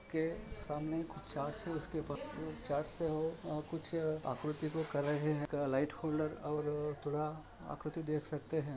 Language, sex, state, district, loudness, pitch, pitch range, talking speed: Hindi, male, Maharashtra, Chandrapur, -39 LUFS, 150 Hz, 150-160 Hz, 170 wpm